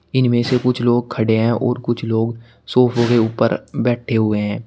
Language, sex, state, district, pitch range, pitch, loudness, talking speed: Hindi, male, Uttar Pradesh, Shamli, 115-125 Hz, 120 Hz, -18 LUFS, 195 wpm